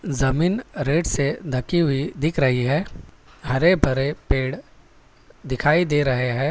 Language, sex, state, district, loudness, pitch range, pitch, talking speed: Hindi, male, Telangana, Hyderabad, -21 LUFS, 130-160 Hz, 145 Hz, 140 wpm